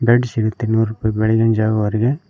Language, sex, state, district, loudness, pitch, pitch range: Kannada, male, Karnataka, Koppal, -17 LUFS, 110 Hz, 110-120 Hz